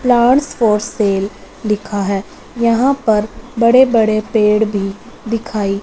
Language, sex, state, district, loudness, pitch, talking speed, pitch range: Hindi, female, Punjab, Fazilka, -15 LUFS, 215 Hz, 125 wpm, 205-240 Hz